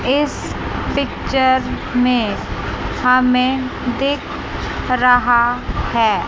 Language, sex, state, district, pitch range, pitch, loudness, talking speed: Hindi, female, Chandigarh, Chandigarh, 245-265 Hz, 250 Hz, -17 LUFS, 65 wpm